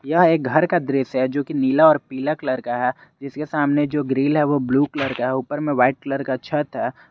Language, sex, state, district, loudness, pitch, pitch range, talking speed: Hindi, male, Jharkhand, Garhwa, -20 LUFS, 145 Hz, 130-150 Hz, 260 wpm